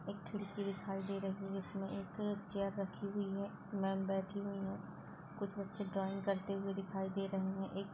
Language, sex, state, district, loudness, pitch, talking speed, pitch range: Hindi, female, Uttar Pradesh, Ghazipur, -42 LUFS, 195 Hz, 205 wpm, 195-200 Hz